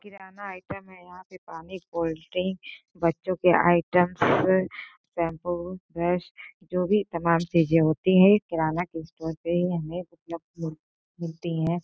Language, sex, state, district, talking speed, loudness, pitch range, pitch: Hindi, female, Uttar Pradesh, Gorakhpur, 135 wpm, -25 LUFS, 165-185 Hz, 175 Hz